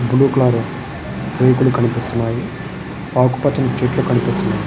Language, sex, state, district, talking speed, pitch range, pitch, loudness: Telugu, male, Andhra Pradesh, Srikakulam, 105 wpm, 115-130 Hz, 125 Hz, -17 LUFS